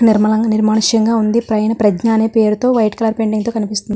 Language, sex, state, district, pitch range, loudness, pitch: Telugu, female, Andhra Pradesh, Visakhapatnam, 215-225 Hz, -14 LUFS, 220 Hz